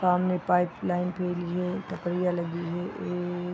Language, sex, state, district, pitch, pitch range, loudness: Hindi, female, Bihar, East Champaran, 180 Hz, 175-180 Hz, -29 LUFS